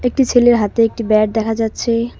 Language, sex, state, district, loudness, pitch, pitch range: Bengali, female, West Bengal, Cooch Behar, -15 LUFS, 230 Hz, 220-240 Hz